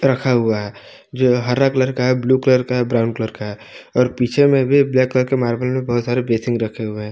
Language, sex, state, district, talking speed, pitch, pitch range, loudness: Hindi, male, Jharkhand, Palamu, 255 wpm, 125 Hz, 115-130 Hz, -17 LUFS